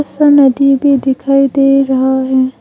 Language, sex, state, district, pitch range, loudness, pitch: Hindi, female, Arunachal Pradesh, Longding, 265-275 Hz, -10 LUFS, 275 Hz